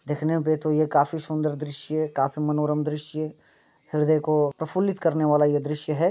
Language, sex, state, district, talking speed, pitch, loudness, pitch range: Hindi, male, Bihar, Muzaffarpur, 175 wpm, 150 Hz, -24 LUFS, 150-155 Hz